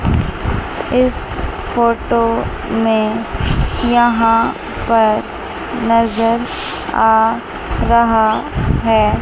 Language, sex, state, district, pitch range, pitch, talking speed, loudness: Hindi, female, Chandigarh, Chandigarh, 225-235 Hz, 230 Hz, 60 wpm, -15 LUFS